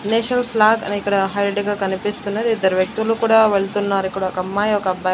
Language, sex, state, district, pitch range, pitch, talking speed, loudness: Telugu, female, Andhra Pradesh, Annamaya, 195-220 Hz, 205 Hz, 200 wpm, -18 LUFS